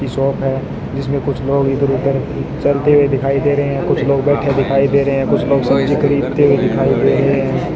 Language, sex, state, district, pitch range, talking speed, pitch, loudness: Hindi, male, Rajasthan, Bikaner, 135-140 Hz, 230 wpm, 140 Hz, -15 LUFS